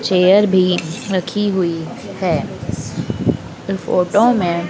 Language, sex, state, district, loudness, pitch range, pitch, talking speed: Hindi, female, Madhya Pradesh, Dhar, -17 LUFS, 175-205 Hz, 185 Hz, 90 wpm